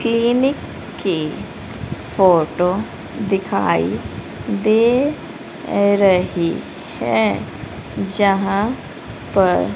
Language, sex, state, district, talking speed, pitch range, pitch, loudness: Hindi, female, Haryana, Rohtak, 55 wpm, 190-230 Hz, 200 Hz, -18 LUFS